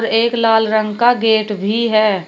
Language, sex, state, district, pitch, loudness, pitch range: Hindi, female, Uttar Pradesh, Shamli, 220 Hz, -15 LUFS, 215-230 Hz